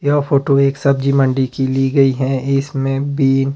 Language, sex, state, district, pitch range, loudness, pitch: Hindi, male, Himachal Pradesh, Shimla, 135-140 Hz, -16 LUFS, 135 Hz